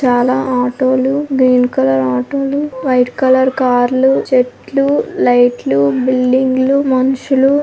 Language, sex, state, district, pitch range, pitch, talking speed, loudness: Telugu, female, Andhra Pradesh, Visakhapatnam, 250-270 Hz, 260 Hz, 135 wpm, -13 LUFS